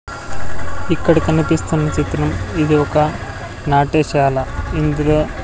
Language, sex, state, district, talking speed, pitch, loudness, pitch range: Telugu, male, Andhra Pradesh, Sri Satya Sai, 75 wpm, 145 Hz, -17 LUFS, 110-155 Hz